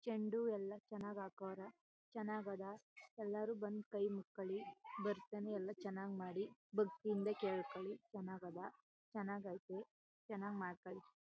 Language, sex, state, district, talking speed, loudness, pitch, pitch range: Kannada, female, Karnataka, Chamarajanagar, 120 wpm, -47 LUFS, 205 Hz, 195-215 Hz